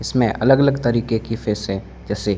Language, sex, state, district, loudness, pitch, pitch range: Hindi, male, Rajasthan, Barmer, -19 LUFS, 115 Hz, 105-125 Hz